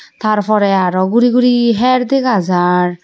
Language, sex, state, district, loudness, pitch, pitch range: Chakma, female, Tripura, Unakoti, -13 LUFS, 215 Hz, 185-245 Hz